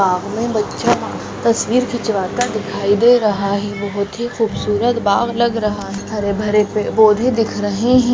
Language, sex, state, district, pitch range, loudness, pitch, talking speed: Hindi, female, Karnataka, Dakshina Kannada, 205-235 Hz, -17 LUFS, 215 Hz, 160 wpm